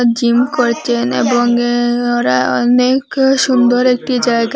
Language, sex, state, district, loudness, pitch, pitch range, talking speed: Bengali, female, Assam, Hailakandi, -13 LUFS, 240 Hz, 240-250 Hz, 120 wpm